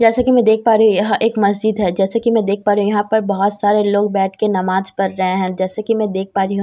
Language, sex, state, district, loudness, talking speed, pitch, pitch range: Hindi, female, Bihar, Katihar, -16 LUFS, 325 wpm, 205 Hz, 195-220 Hz